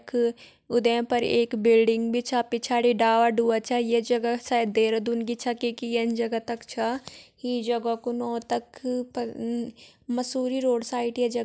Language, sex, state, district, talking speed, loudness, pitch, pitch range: Garhwali, female, Uttarakhand, Tehri Garhwal, 180 wpm, -26 LUFS, 235 Hz, 230-245 Hz